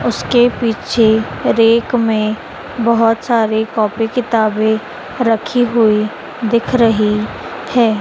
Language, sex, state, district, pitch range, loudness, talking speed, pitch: Hindi, female, Madhya Pradesh, Dhar, 220-235 Hz, -14 LUFS, 95 wpm, 225 Hz